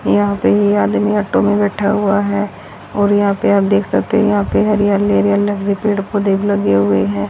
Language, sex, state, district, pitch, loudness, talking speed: Hindi, female, Haryana, Rohtak, 200 Hz, -15 LUFS, 195 wpm